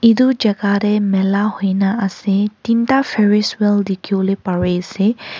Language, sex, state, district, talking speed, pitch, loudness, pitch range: Nagamese, female, Nagaland, Kohima, 145 wpm, 205 Hz, -16 LUFS, 195-215 Hz